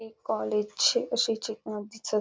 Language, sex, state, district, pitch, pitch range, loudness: Marathi, female, Maharashtra, Nagpur, 220 Hz, 210-225 Hz, -28 LUFS